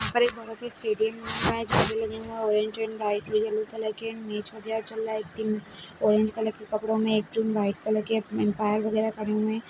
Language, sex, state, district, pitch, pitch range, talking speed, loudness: Hindi, male, Chhattisgarh, Bastar, 220 Hz, 215-225 Hz, 245 wpm, -27 LUFS